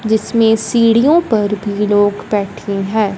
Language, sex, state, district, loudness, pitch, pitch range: Hindi, female, Punjab, Fazilka, -14 LUFS, 215 Hz, 205-225 Hz